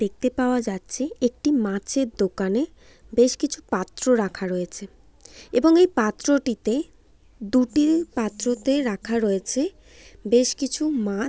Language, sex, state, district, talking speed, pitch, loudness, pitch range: Bengali, female, West Bengal, Jalpaiguri, 110 wpm, 245 Hz, -23 LUFS, 210-275 Hz